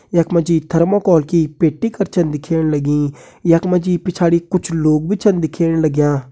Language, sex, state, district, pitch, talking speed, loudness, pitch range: Kumaoni, male, Uttarakhand, Uttarkashi, 165 Hz, 170 wpm, -16 LUFS, 155-180 Hz